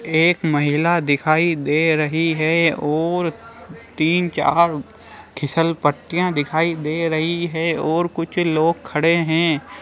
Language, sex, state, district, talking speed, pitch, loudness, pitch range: Hindi, male, Bihar, Jahanabad, 120 wpm, 165 Hz, -19 LUFS, 155-170 Hz